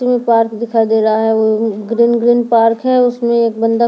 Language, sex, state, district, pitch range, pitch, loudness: Hindi, female, Delhi, New Delhi, 225-235 Hz, 230 Hz, -13 LUFS